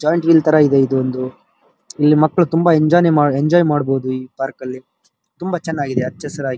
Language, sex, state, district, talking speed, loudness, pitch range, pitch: Kannada, male, Karnataka, Dharwad, 180 wpm, -16 LUFS, 135-160 Hz, 150 Hz